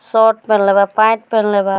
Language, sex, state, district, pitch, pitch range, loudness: Bhojpuri, female, Bihar, Muzaffarpur, 220 Hz, 200-225 Hz, -13 LUFS